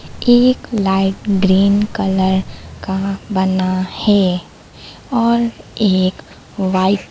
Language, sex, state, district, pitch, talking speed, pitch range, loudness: Hindi, female, Bihar, Begusarai, 195 Hz, 95 wpm, 190-210 Hz, -16 LUFS